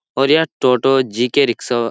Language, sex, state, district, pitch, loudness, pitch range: Hindi, male, Bihar, Lakhisarai, 130 Hz, -15 LUFS, 125-135 Hz